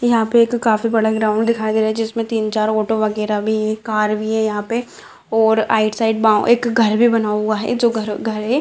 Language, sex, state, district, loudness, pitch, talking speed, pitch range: Hindi, female, Bihar, Madhepura, -17 LUFS, 220 Hz, 250 wpm, 215-230 Hz